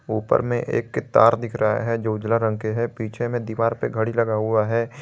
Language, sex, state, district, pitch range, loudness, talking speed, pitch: Hindi, male, Jharkhand, Garhwa, 110-115 Hz, -22 LUFS, 240 wpm, 115 Hz